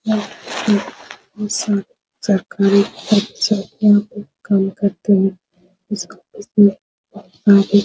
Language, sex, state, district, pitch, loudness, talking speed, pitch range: Hindi, female, Bihar, Supaul, 205 Hz, -17 LUFS, 70 wpm, 195-210 Hz